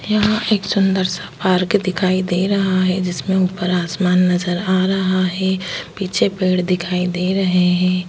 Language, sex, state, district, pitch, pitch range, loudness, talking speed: Hindi, female, Goa, North and South Goa, 185 Hz, 180-190 Hz, -18 LUFS, 165 wpm